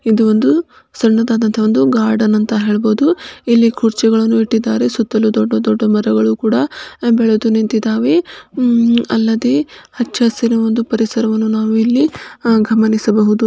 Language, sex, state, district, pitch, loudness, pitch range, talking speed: Kannada, female, Karnataka, Bijapur, 225 Hz, -14 LUFS, 220-235 Hz, 105 wpm